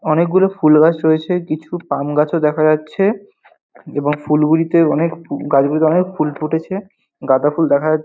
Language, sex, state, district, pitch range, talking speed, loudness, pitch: Bengali, male, West Bengal, North 24 Parganas, 150-170 Hz, 150 wpm, -16 LUFS, 155 Hz